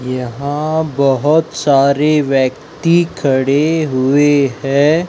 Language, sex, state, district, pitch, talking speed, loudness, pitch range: Hindi, male, Madhya Pradesh, Dhar, 145 Hz, 85 wpm, -14 LUFS, 135-155 Hz